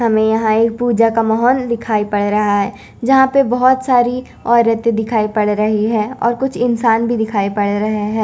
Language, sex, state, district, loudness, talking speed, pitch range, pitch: Hindi, female, Chandigarh, Chandigarh, -15 LUFS, 195 wpm, 215-240 Hz, 225 Hz